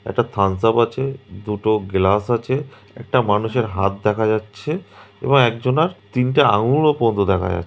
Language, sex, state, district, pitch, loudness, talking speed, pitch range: Bengali, male, West Bengal, Kolkata, 115 Hz, -19 LUFS, 140 wpm, 100-130 Hz